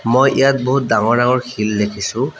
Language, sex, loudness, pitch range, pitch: Assamese, male, -16 LUFS, 105-135 Hz, 125 Hz